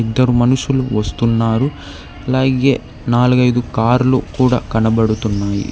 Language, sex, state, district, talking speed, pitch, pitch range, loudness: Telugu, male, Telangana, Hyderabad, 95 wpm, 120 Hz, 110-130 Hz, -15 LUFS